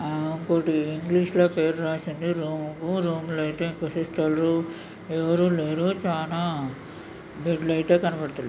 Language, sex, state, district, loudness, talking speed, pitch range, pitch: Telugu, male, Andhra Pradesh, Srikakulam, -25 LUFS, 120 wpm, 155-170 Hz, 165 Hz